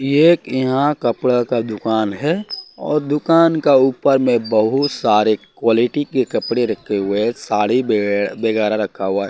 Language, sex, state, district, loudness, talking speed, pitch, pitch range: Hindi, male, Bihar, Katihar, -17 LUFS, 155 wpm, 120 Hz, 110-145 Hz